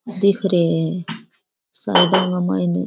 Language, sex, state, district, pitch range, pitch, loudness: Rajasthani, female, Rajasthan, Churu, 160-195 Hz, 180 Hz, -18 LUFS